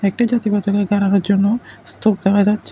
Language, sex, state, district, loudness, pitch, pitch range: Bengali, male, Tripura, West Tripura, -17 LUFS, 205 Hz, 200-215 Hz